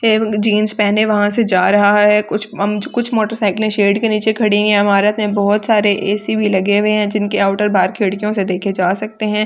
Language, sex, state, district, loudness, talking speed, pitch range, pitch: Hindi, female, Delhi, New Delhi, -15 LUFS, 210 wpm, 200-215 Hz, 210 Hz